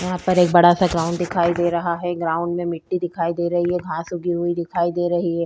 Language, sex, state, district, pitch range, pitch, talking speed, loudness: Hindi, female, Bihar, Vaishali, 170-175 Hz, 175 Hz, 275 wpm, -20 LUFS